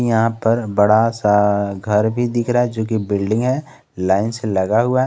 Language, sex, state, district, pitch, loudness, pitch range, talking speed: Hindi, male, Jharkhand, Garhwa, 110 Hz, -18 LUFS, 105-120 Hz, 200 wpm